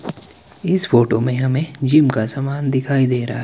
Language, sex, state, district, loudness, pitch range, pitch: Hindi, male, Himachal Pradesh, Shimla, -17 LUFS, 125-140 Hz, 130 Hz